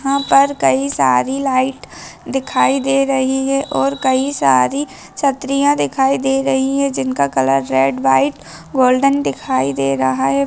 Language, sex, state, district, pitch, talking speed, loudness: Hindi, female, Bihar, Begusarai, 255 Hz, 150 wpm, -16 LUFS